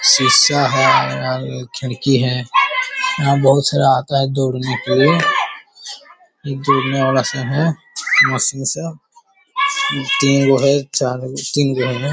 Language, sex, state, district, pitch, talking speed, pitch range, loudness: Hindi, male, Bihar, Jamui, 135 Hz, 140 wpm, 130-155 Hz, -16 LUFS